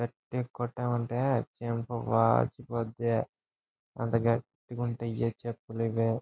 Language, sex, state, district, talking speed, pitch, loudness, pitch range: Telugu, male, Andhra Pradesh, Anantapur, 95 wpm, 115 Hz, -31 LUFS, 115-120 Hz